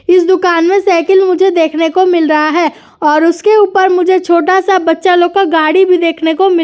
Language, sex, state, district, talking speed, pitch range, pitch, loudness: Hindi, female, Uttar Pradesh, Jyotiba Phule Nagar, 225 wpm, 330-380 Hz, 360 Hz, -10 LUFS